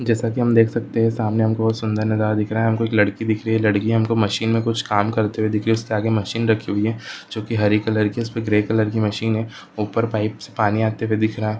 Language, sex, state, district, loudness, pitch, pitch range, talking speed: Hindi, male, Bihar, Jahanabad, -20 LUFS, 110 Hz, 105-115 Hz, 300 wpm